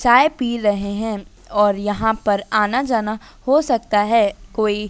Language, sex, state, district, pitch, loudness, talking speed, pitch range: Hindi, female, Madhya Pradesh, Dhar, 215 Hz, -19 LUFS, 160 wpm, 205-240 Hz